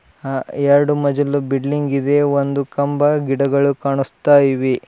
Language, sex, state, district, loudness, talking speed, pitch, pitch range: Kannada, male, Karnataka, Bidar, -17 LUFS, 110 wpm, 140 Hz, 135-145 Hz